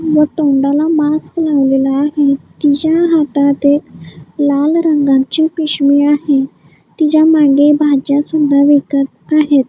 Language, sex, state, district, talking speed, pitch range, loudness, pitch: Marathi, female, Maharashtra, Gondia, 110 wpm, 280-310 Hz, -12 LUFS, 290 Hz